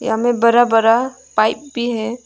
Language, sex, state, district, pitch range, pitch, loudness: Hindi, female, Arunachal Pradesh, Longding, 225-240 Hz, 235 Hz, -16 LUFS